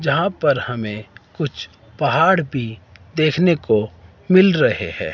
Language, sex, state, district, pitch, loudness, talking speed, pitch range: Hindi, male, Himachal Pradesh, Shimla, 140 Hz, -18 LUFS, 130 wpm, 105-165 Hz